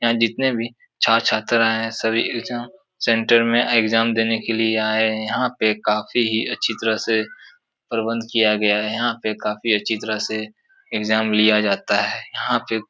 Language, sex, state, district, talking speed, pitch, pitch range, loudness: Hindi, male, Uttar Pradesh, Etah, 185 wpm, 115 Hz, 110-115 Hz, -20 LUFS